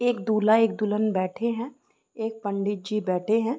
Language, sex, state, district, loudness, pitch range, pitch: Hindi, female, Uttar Pradesh, Varanasi, -25 LUFS, 205-230 Hz, 220 Hz